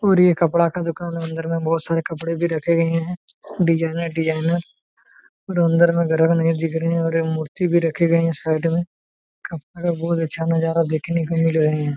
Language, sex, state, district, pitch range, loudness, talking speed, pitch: Hindi, male, Jharkhand, Jamtara, 165-170 Hz, -20 LUFS, 210 wpm, 165 Hz